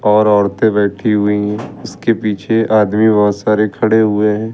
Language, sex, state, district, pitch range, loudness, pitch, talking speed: Hindi, male, Uttar Pradesh, Lucknow, 105-110 Hz, -14 LUFS, 105 Hz, 160 wpm